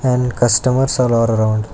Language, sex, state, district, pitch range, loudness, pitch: English, male, Karnataka, Bangalore, 115-125 Hz, -15 LUFS, 120 Hz